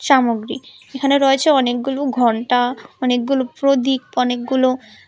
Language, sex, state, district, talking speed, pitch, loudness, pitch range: Bengali, female, Tripura, West Tripura, 95 wpm, 260 Hz, -17 LUFS, 245-270 Hz